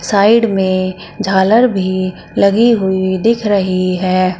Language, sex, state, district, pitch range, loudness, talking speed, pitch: Hindi, female, Uttar Pradesh, Shamli, 185-210 Hz, -13 LUFS, 125 wpm, 190 Hz